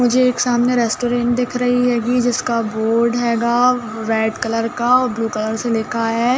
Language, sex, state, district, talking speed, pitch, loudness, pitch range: Hindi, female, Uttar Pradesh, Budaun, 190 wpm, 240 Hz, -17 LUFS, 225-245 Hz